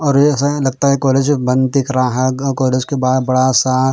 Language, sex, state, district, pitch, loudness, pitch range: Hindi, male, Bihar, Patna, 130 Hz, -15 LUFS, 130-140 Hz